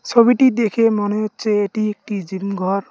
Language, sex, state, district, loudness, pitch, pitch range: Bengali, male, West Bengal, Cooch Behar, -18 LUFS, 210 Hz, 200-225 Hz